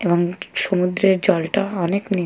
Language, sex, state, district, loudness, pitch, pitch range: Bengali, female, West Bengal, Paschim Medinipur, -20 LUFS, 185 Hz, 175-195 Hz